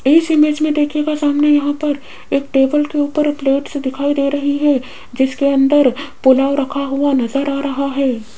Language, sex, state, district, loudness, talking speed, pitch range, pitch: Hindi, female, Rajasthan, Jaipur, -16 LUFS, 180 wpm, 275-290 Hz, 280 Hz